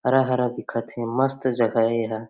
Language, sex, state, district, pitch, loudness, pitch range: Chhattisgarhi, male, Chhattisgarh, Jashpur, 120 Hz, -23 LUFS, 115-130 Hz